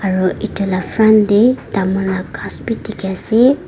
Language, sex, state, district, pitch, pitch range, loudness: Nagamese, female, Nagaland, Dimapur, 195 Hz, 190-220 Hz, -16 LUFS